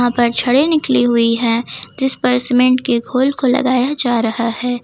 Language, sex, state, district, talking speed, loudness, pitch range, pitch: Hindi, female, Jharkhand, Ranchi, 175 wpm, -15 LUFS, 235-260 Hz, 250 Hz